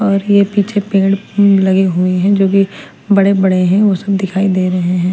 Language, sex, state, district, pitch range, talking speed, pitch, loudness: Hindi, female, Bihar, West Champaran, 185-200 Hz, 210 wpm, 195 Hz, -12 LUFS